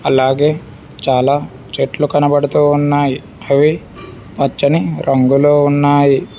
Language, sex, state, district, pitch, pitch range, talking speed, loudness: Telugu, male, Telangana, Hyderabad, 145 Hz, 135-145 Hz, 85 wpm, -13 LUFS